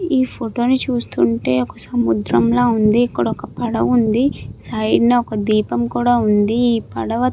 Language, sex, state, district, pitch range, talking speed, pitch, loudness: Telugu, female, Andhra Pradesh, Visakhapatnam, 210-245 Hz, 170 wpm, 230 Hz, -17 LUFS